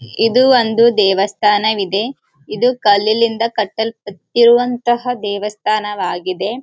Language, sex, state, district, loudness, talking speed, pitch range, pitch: Kannada, female, Karnataka, Gulbarga, -15 LUFS, 65 wpm, 205-235 Hz, 220 Hz